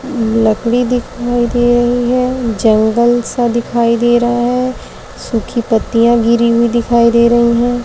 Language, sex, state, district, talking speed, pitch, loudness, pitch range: Hindi, female, Uttar Pradesh, Varanasi, 145 wpm, 235 Hz, -13 LUFS, 235-245 Hz